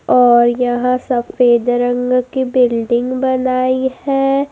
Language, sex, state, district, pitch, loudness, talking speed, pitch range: Hindi, female, Madhya Pradesh, Dhar, 250 Hz, -14 LUFS, 105 wpm, 245-260 Hz